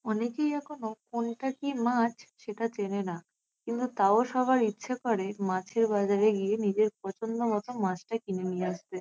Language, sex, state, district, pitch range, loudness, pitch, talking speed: Bengali, female, West Bengal, North 24 Parganas, 200-235 Hz, -30 LUFS, 220 Hz, 155 wpm